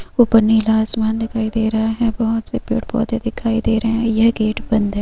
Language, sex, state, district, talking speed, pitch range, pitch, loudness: Hindi, female, Chhattisgarh, Rajnandgaon, 225 wpm, 220-230 Hz, 225 Hz, -18 LUFS